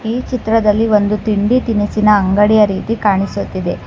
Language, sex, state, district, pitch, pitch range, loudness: Kannada, female, Karnataka, Bangalore, 210 Hz, 205-225 Hz, -14 LUFS